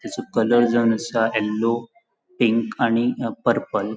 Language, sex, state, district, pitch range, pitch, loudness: Konkani, male, Goa, North and South Goa, 115-120 Hz, 115 Hz, -21 LUFS